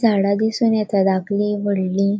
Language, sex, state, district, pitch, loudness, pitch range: Konkani, female, Goa, North and South Goa, 200 Hz, -19 LUFS, 195-210 Hz